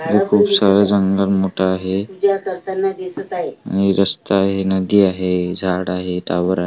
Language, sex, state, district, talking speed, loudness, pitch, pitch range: Marathi, male, Maharashtra, Washim, 145 wpm, -17 LUFS, 95 Hz, 95-120 Hz